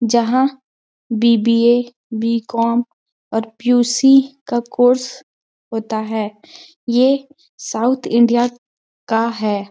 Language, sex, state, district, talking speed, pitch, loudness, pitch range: Hindi, female, Chhattisgarh, Balrampur, 85 wpm, 240 Hz, -17 LUFS, 230-255 Hz